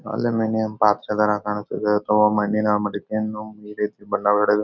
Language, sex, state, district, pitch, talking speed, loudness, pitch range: Kannada, male, Karnataka, Shimoga, 105 Hz, 115 wpm, -21 LUFS, 105-110 Hz